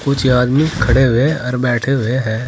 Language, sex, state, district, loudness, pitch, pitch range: Hindi, male, Uttar Pradesh, Saharanpur, -15 LUFS, 125 Hz, 120-135 Hz